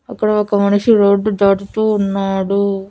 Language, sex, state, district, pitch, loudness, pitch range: Telugu, female, Andhra Pradesh, Annamaya, 200 Hz, -15 LUFS, 195-215 Hz